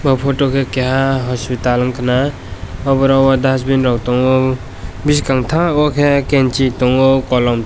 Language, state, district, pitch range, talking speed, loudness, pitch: Kokborok, Tripura, West Tripura, 125-135 Hz, 150 wpm, -14 LUFS, 130 Hz